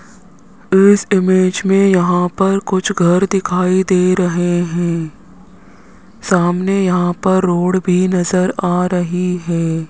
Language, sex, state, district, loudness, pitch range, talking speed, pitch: Hindi, male, Rajasthan, Jaipur, -14 LUFS, 175-195 Hz, 120 wpm, 185 Hz